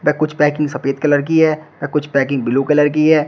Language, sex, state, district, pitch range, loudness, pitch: Hindi, male, Uttar Pradesh, Shamli, 145-155 Hz, -16 LUFS, 150 Hz